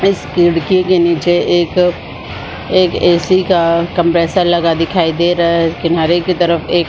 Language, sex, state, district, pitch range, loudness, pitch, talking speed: Hindi, female, Chhattisgarh, Bilaspur, 170-180 Hz, -13 LUFS, 175 Hz, 155 wpm